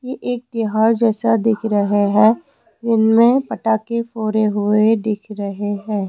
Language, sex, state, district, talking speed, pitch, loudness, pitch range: Hindi, female, Rajasthan, Jaipur, 140 wpm, 220 Hz, -17 LUFS, 210-230 Hz